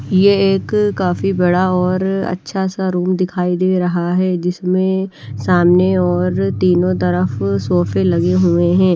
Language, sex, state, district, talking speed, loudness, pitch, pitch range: Hindi, female, Haryana, Charkhi Dadri, 140 wpm, -15 LUFS, 180 Hz, 170-185 Hz